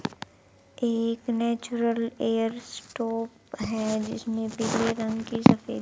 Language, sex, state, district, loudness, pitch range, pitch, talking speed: Hindi, male, Haryana, Charkhi Dadri, -27 LUFS, 225-235 Hz, 230 Hz, 105 wpm